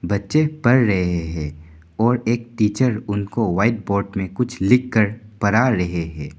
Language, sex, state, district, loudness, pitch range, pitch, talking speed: Hindi, male, Arunachal Pradesh, Papum Pare, -20 LUFS, 90-120 Hz, 105 Hz, 150 wpm